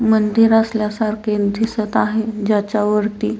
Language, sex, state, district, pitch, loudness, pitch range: Marathi, female, Maharashtra, Solapur, 215 Hz, -17 LUFS, 210-220 Hz